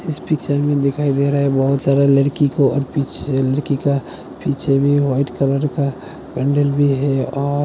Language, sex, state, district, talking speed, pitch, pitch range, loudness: Hindi, male, Uttar Pradesh, Hamirpur, 165 wpm, 140 Hz, 140-145 Hz, -17 LUFS